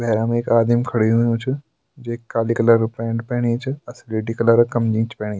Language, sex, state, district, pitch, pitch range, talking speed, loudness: Garhwali, male, Uttarakhand, Tehri Garhwal, 115 Hz, 115-120 Hz, 220 wpm, -19 LUFS